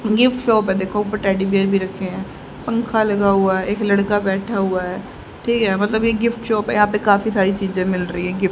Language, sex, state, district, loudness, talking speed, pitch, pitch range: Hindi, female, Haryana, Jhajjar, -18 LUFS, 255 wpm, 200 Hz, 190-215 Hz